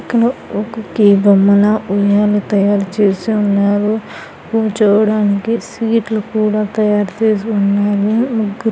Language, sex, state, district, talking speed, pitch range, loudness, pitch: Telugu, female, Andhra Pradesh, Anantapur, 95 wpm, 205-220 Hz, -14 LUFS, 210 Hz